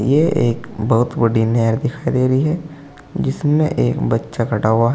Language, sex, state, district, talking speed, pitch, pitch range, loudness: Hindi, male, Uttar Pradesh, Saharanpur, 180 wpm, 125 Hz, 115-145 Hz, -17 LUFS